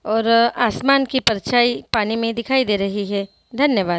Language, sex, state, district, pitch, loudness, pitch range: Hindi, female, Bihar, Araria, 230 Hz, -18 LUFS, 210-245 Hz